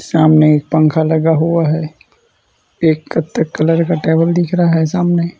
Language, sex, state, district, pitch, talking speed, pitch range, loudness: Hindi, male, Gujarat, Valsad, 160 Hz, 165 wpm, 155-170 Hz, -13 LUFS